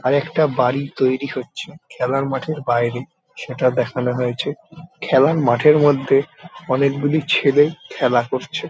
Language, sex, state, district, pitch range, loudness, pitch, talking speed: Bengali, male, West Bengal, Jalpaiguri, 125-145 Hz, -18 LUFS, 135 Hz, 115 wpm